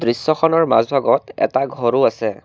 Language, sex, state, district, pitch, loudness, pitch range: Assamese, male, Assam, Kamrup Metropolitan, 140 Hz, -17 LUFS, 115-165 Hz